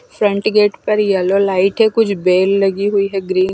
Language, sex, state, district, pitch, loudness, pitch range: Hindi, female, Chandigarh, Chandigarh, 200 Hz, -15 LUFS, 190-210 Hz